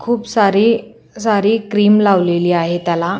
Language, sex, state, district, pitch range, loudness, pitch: Marathi, female, Maharashtra, Solapur, 175-220 Hz, -14 LUFS, 205 Hz